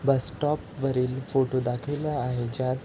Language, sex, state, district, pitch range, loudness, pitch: Marathi, male, Maharashtra, Chandrapur, 125-140 Hz, -27 LUFS, 130 Hz